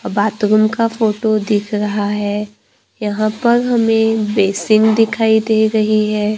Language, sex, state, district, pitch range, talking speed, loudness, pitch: Hindi, female, Maharashtra, Gondia, 210-220 Hz, 140 wpm, -15 LUFS, 215 Hz